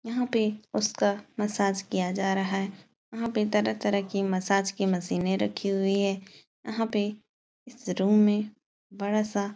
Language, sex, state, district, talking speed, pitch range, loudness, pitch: Hindi, female, Uttar Pradesh, Etah, 155 wpm, 195-210 Hz, -28 LUFS, 200 Hz